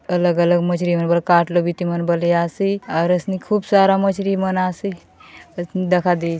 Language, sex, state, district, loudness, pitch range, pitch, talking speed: Halbi, female, Chhattisgarh, Bastar, -18 LUFS, 170-190 Hz, 175 Hz, 170 wpm